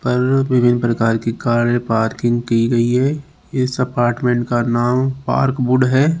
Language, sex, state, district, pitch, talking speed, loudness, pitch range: Hindi, male, Rajasthan, Jaipur, 120 Hz, 145 wpm, -17 LUFS, 120-130 Hz